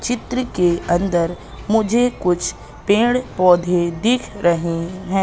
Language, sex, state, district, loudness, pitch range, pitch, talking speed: Hindi, female, Madhya Pradesh, Katni, -18 LUFS, 170-225 Hz, 180 Hz, 115 wpm